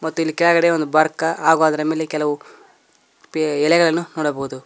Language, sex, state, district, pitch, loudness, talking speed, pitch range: Kannada, male, Karnataka, Koppal, 160 Hz, -18 LUFS, 140 wpm, 150-165 Hz